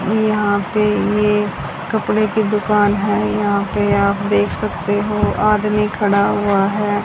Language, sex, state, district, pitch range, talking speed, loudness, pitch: Hindi, female, Haryana, Jhajjar, 200-210 Hz, 145 wpm, -17 LUFS, 205 Hz